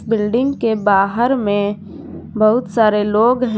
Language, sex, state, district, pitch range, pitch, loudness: Hindi, female, Jharkhand, Garhwa, 210-240 Hz, 220 Hz, -16 LUFS